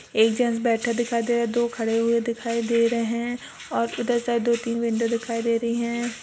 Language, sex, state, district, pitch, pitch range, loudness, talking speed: Hindi, female, Uttar Pradesh, Jalaun, 235 Hz, 230-235 Hz, -24 LUFS, 230 wpm